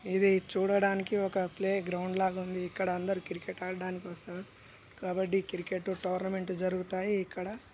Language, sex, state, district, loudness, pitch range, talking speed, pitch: Telugu, male, Telangana, Nalgonda, -33 LUFS, 180-190 Hz, 125 wpm, 185 Hz